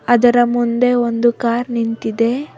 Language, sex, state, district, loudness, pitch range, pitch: Kannada, female, Karnataka, Bangalore, -16 LUFS, 235-245 Hz, 240 Hz